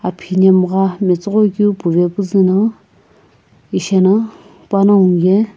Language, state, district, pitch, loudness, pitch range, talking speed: Sumi, Nagaland, Kohima, 195 Hz, -14 LUFS, 185-205 Hz, 95 wpm